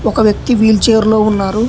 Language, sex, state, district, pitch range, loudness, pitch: Telugu, male, Telangana, Hyderabad, 215-225 Hz, -11 LUFS, 220 Hz